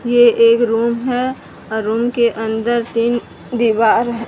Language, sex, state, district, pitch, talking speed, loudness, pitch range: Hindi, female, Odisha, Sambalpur, 235 Hz, 140 wpm, -16 LUFS, 230-240 Hz